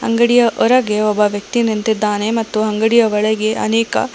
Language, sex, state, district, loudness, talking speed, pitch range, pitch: Kannada, female, Karnataka, Bangalore, -15 LUFS, 130 wpm, 210-230 Hz, 220 Hz